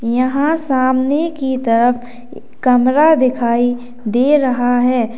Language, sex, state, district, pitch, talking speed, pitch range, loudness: Hindi, female, Uttar Pradesh, Lalitpur, 255 Hz, 105 wpm, 245-265 Hz, -15 LUFS